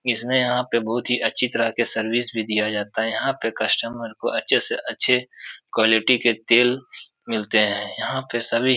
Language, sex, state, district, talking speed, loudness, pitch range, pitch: Hindi, male, Uttar Pradesh, Etah, 185 wpm, -21 LUFS, 110-125 Hz, 120 Hz